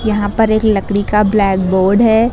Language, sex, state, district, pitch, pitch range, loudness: Hindi, female, Uttar Pradesh, Lucknow, 210 Hz, 200-220 Hz, -13 LUFS